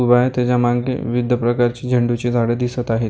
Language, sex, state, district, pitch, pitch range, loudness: Marathi, male, Maharashtra, Gondia, 120 Hz, 120-125 Hz, -18 LUFS